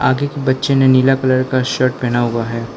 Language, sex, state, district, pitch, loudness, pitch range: Hindi, male, Arunachal Pradesh, Lower Dibang Valley, 130 Hz, -15 LUFS, 120-135 Hz